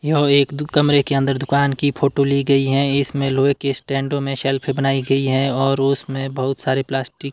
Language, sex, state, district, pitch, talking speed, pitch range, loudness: Hindi, male, Himachal Pradesh, Shimla, 135 Hz, 220 wpm, 135-140 Hz, -18 LUFS